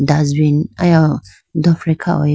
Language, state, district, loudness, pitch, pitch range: Idu Mishmi, Arunachal Pradesh, Lower Dibang Valley, -15 LUFS, 155 Hz, 150-170 Hz